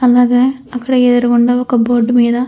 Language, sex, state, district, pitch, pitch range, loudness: Telugu, female, Andhra Pradesh, Anantapur, 245 Hz, 240-250 Hz, -12 LUFS